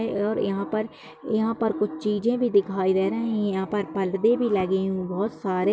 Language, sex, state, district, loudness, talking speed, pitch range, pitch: Hindi, female, Bihar, Bhagalpur, -25 LUFS, 220 wpm, 190-220 Hz, 205 Hz